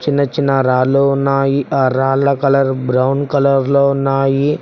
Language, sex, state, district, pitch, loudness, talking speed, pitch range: Telugu, male, Telangana, Mahabubabad, 135 Hz, -14 LUFS, 130 wpm, 135-140 Hz